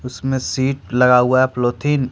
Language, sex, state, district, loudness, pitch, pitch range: Hindi, male, Jharkhand, Ranchi, -17 LUFS, 130 Hz, 125-135 Hz